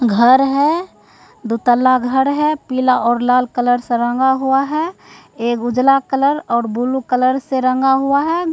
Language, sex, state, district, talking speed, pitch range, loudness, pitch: Hindi, female, Bihar, Begusarai, 170 wpm, 245-275 Hz, -15 LUFS, 260 Hz